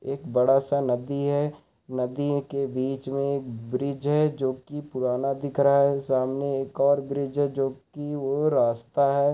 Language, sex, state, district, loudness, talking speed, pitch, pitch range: Hindi, male, Chhattisgarh, Raigarh, -26 LUFS, 160 wpm, 140 Hz, 130-140 Hz